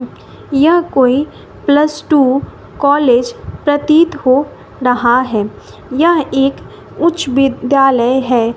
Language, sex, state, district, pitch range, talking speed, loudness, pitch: Hindi, female, Bihar, West Champaran, 250-295 Hz, 100 wpm, -13 LUFS, 270 Hz